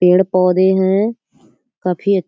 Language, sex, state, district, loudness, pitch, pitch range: Hindi, female, Uttar Pradesh, Budaun, -15 LUFS, 190 Hz, 180-200 Hz